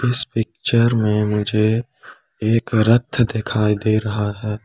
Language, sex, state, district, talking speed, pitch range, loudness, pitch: Hindi, male, Jharkhand, Palamu, 130 wpm, 105-115 Hz, -18 LUFS, 110 Hz